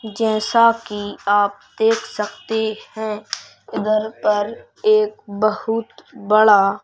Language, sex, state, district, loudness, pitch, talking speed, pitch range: Hindi, male, Madhya Pradesh, Bhopal, -19 LUFS, 215 Hz, 95 wpm, 210-225 Hz